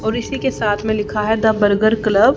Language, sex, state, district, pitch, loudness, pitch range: Hindi, female, Haryana, Jhajjar, 220 Hz, -17 LUFS, 210-225 Hz